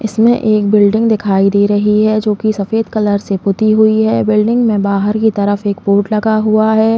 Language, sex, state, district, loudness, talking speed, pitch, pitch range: Hindi, female, Uttar Pradesh, Jalaun, -12 LUFS, 215 wpm, 215 Hz, 205-220 Hz